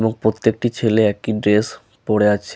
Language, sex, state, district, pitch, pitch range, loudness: Bengali, male, West Bengal, Malda, 110 Hz, 105-110 Hz, -18 LUFS